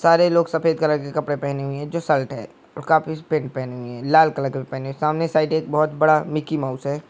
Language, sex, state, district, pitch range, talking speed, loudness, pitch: Hindi, male, West Bengal, Jhargram, 140-160 Hz, 280 wpm, -21 LUFS, 150 Hz